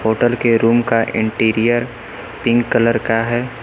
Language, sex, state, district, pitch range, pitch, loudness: Hindi, male, Uttar Pradesh, Lucknow, 115-120 Hz, 115 Hz, -16 LUFS